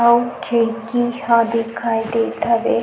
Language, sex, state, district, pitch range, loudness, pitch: Chhattisgarhi, female, Chhattisgarh, Sukma, 230-235 Hz, -18 LUFS, 230 Hz